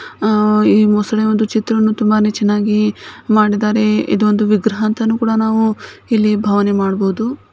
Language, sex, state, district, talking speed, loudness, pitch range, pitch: Kannada, female, Karnataka, Bijapur, 135 wpm, -14 LUFS, 210-220 Hz, 215 Hz